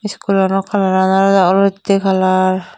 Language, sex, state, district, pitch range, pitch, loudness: Chakma, female, Tripura, Dhalai, 190-195 Hz, 195 Hz, -14 LUFS